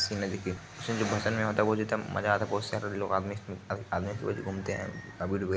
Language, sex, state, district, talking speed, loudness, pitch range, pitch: Hindi, male, Bihar, Begusarai, 110 wpm, -32 LUFS, 95-110 Hz, 100 Hz